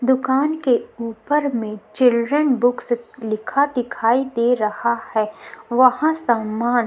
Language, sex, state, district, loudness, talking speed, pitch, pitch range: Hindi, female, Uttarakhand, Tehri Garhwal, -19 LUFS, 120 wpm, 245 Hz, 230-260 Hz